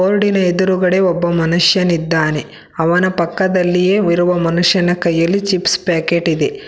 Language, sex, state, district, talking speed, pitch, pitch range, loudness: Kannada, female, Karnataka, Bangalore, 115 wpm, 180 Hz, 170-185 Hz, -14 LUFS